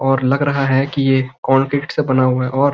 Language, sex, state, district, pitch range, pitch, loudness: Hindi, male, Uttarakhand, Uttarkashi, 130-140 Hz, 135 Hz, -16 LUFS